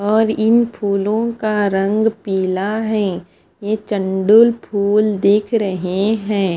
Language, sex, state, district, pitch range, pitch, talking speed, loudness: Hindi, female, Punjab, Fazilka, 195-220 Hz, 210 Hz, 120 wpm, -17 LUFS